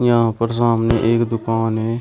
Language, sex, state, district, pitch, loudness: Hindi, male, Uttar Pradesh, Shamli, 115 Hz, -18 LUFS